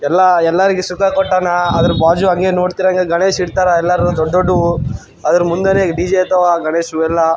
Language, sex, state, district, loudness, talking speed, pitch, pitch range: Kannada, male, Karnataka, Raichur, -13 LUFS, 195 wpm, 175 Hz, 170-185 Hz